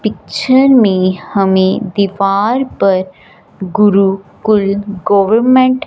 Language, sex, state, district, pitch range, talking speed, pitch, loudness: Hindi, female, Punjab, Fazilka, 190-225 Hz, 80 wpm, 200 Hz, -12 LUFS